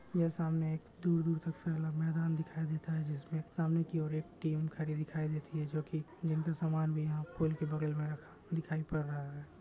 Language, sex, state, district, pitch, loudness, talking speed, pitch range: Hindi, male, Bihar, Muzaffarpur, 160 Hz, -37 LUFS, 225 wpm, 155-165 Hz